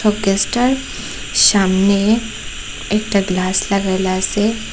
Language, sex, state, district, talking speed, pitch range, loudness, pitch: Bengali, female, Assam, Hailakandi, 90 wpm, 190-215 Hz, -16 LUFS, 200 Hz